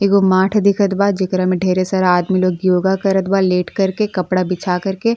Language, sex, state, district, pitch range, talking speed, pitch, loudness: Bhojpuri, female, Uttar Pradesh, Ghazipur, 185-195 Hz, 195 wpm, 190 Hz, -16 LUFS